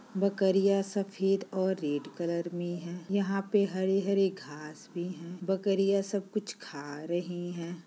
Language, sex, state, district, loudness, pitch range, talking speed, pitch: Hindi, female, Bihar, Saran, -31 LUFS, 175-195 Hz, 145 wpm, 190 Hz